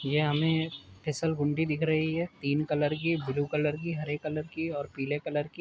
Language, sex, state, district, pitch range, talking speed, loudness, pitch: Hindi, male, Uttar Pradesh, Jyotiba Phule Nagar, 145-160 Hz, 205 wpm, -30 LUFS, 150 Hz